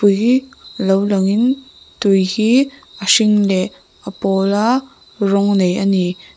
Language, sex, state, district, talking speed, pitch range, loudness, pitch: Mizo, female, Mizoram, Aizawl, 130 wpm, 195-235 Hz, -16 LUFS, 200 Hz